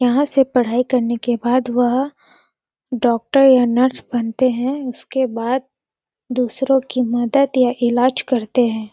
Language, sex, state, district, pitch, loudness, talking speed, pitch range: Hindi, female, Chhattisgarh, Sarguja, 250 Hz, -17 LUFS, 140 wpm, 240-265 Hz